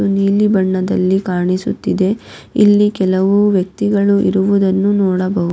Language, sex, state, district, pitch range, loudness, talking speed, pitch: Kannada, female, Karnataka, Raichur, 185-200 Hz, -14 LUFS, 100 wpm, 195 Hz